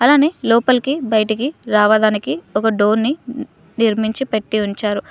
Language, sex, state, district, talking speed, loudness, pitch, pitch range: Telugu, female, Telangana, Mahabubabad, 105 wpm, -17 LUFS, 220 Hz, 210-255 Hz